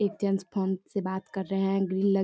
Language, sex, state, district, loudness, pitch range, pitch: Hindi, female, Bihar, Darbhanga, -29 LUFS, 190-200 Hz, 195 Hz